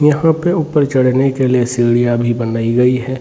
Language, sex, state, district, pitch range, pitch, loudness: Hindi, male, Jharkhand, Sahebganj, 120-145 Hz, 130 Hz, -14 LUFS